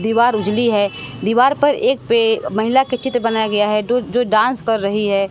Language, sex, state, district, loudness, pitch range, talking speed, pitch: Hindi, female, Bihar, West Champaran, -16 LUFS, 210-255 Hz, 215 wpm, 230 Hz